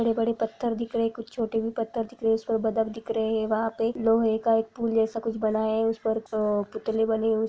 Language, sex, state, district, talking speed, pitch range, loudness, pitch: Hindi, female, Chhattisgarh, Kabirdham, 250 wpm, 220-230 Hz, -27 LUFS, 225 Hz